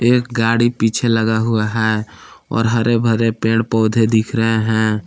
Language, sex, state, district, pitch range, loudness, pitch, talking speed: Hindi, male, Jharkhand, Palamu, 110-115 Hz, -16 LUFS, 115 Hz, 165 wpm